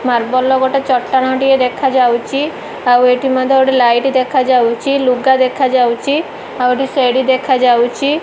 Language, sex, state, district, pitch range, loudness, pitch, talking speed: Odia, female, Odisha, Malkangiri, 250-270 Hz, -13 LUFS, 260 Hz, 130 wpm